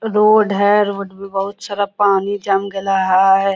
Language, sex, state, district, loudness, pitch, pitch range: Hindi, female, Jharkhand, Sahebganj, -16 LUFS, 200 Hz, 195-205 Hz